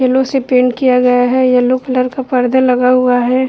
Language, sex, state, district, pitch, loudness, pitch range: Hindi, female, Uttar Pradesh, Budaun, 255 Hz, -12 LUFS, 250-260 Hz